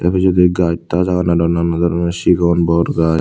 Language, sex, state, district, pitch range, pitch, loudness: Chakma, male, Tripura, Unakoti, 85-90 Hz, 85 Hz, -15 LUFS